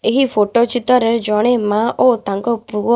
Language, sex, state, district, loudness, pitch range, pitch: Odia, female, Odisha, Khordha, -15 LUFS, 210-240 Hz, 230 Hz